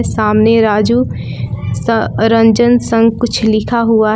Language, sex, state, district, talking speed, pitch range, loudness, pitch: Hindi, female, Jharkhand, Palamu, 130 wpm, 215-235 Hz, -12 LUFS, 225 Hz